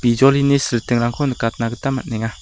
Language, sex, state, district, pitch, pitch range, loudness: Garo, male, Meghalaya, West Garo Hills, 120 Hz, 115-135 Hz, -18 LUFS